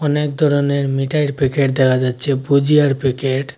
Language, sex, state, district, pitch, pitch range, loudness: Bengali, male, Assam, Hailakandi, 140 Hz, 135-145 Hz, -16 LUFS